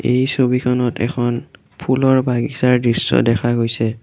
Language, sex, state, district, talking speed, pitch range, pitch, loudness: Assamese, male, Assam, Kamrup Metropolitan, 120 wpm, 115-130 Hz, 125 Hz, -17 LUFS